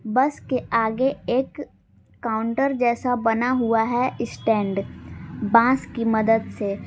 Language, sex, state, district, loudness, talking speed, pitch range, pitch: Hindi, female, Jharkhand, Palamu, -22 LUFS, 120 wpm, 225-255 Hz, 230 Hz